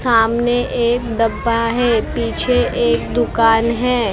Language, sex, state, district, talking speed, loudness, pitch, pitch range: Hindi, female, Maharashtra, Mumbai Suburban, 145 wpm, -16 LUFS, 235 Hz, 230-245 Hz